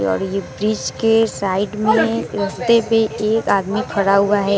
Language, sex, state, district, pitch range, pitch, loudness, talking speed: Hindi, female, West Bengal, Alipurduar, 195-225 Hz, 205 Hz, -18 LUFS, 170 wpm